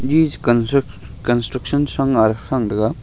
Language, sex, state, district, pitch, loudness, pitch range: Wancho, male, Arunachal Pradesh, Longding, 125 Hz, -17 LUFS, 110-140 Hz